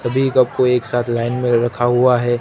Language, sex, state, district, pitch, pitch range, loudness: Hindi, male, Gujarat, Gandhinagar, 120 Hz, 120-125 Hz, -16 LUFS